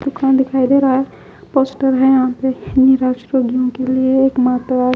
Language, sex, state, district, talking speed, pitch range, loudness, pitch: Hindi, female, Haryana, Charkhi Dadri, 145 wpm, 255-265 Hz, -15 LUFS, 260 Hz